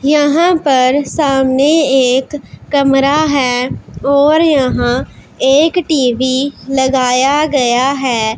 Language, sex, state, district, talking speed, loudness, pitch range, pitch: Hindi, female, Punjab, Pathankot, 95 wpm, -12 LUFS, 260-295 Hz, 275 Hz